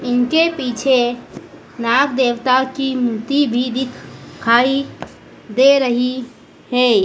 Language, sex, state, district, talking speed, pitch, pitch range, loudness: Hindi, female, Madhya Pradesh, Dhar, 95 wpm, 255 Hz, 245-270 Hz, -16 LUFS